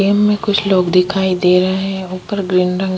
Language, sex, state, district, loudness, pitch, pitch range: Hindi, female, Chhattisgarh, Kabirdham, -15 LUFS, 190 Hz, 185-195 Hz